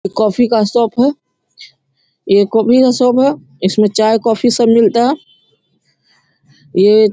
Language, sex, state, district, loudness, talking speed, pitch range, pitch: Hindi, male, Bihar, Darbhanga, -12 LUFS, 145 wpm, 205-245 Hz, 225 Hz